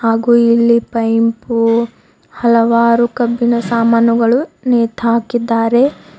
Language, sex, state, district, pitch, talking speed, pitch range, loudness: Kannada, female, Karnataka, Bidar, 235 Hz, 70 wpm, 230-235 Hz, -13 LUFS